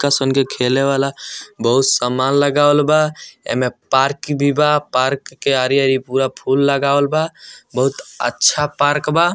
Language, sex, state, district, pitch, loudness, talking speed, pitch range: Bhojpuri, male, Bihar, Muzaffarpur, 140 Hz, -16 LUFS, 155 wpm, 135-145 Hz